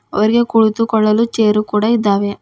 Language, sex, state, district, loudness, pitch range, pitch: Kannada, female, Karnataka, Bidar, -14 LUFS, 210-230 Hz, 215 Hz